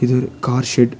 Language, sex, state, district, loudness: Tamil, male, Tamil Nadu, Nilgiris, -18 LUFS